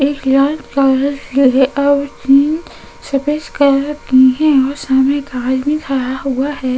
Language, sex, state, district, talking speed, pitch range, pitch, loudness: Hindi, female, Goa, North and South Goa, 115 wpm, 265-285 Hz, 275 Hz, -14 LUFS